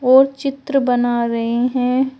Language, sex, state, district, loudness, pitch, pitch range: Hindi, female, Uttar Pradesh, Shamli, -17 LUFS, 255 Hz, 245-270 Hz